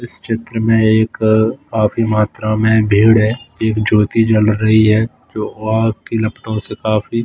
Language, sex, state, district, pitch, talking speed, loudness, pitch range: Hindi, male, Bihar, Katihar, 110 Hz, 165 wpm, -15 LUFS, 110-115 Hz